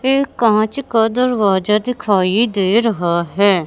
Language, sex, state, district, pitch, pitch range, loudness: Hindi, male, Madhya Pradesh, Katni, 215 Hz, 195-240 Hz, -16 LUFS